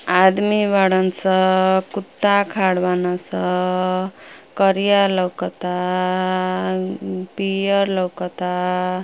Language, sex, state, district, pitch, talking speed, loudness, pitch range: Bhojpuri, female, Uttar Pradesh, Ghazipur, 185 Hz, 75 wpm, -19 LUFS, 180-195 Hz